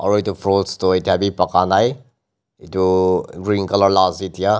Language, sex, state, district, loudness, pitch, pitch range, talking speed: Nagamese, male, Nagaland, Dimapur, -17 LUFS, 95 Hz, 95-100 Hz, 180 wpm